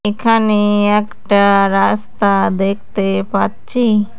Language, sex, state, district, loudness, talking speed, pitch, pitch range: Bengali, female, West Bengal, Cooch Behar, -14 LUFS, 70 wpm, 205 Hz, 195-210 Hz